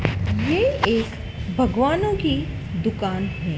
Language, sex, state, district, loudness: Hindi, female, Madhya Pradesh, Dhar, -22 LUFS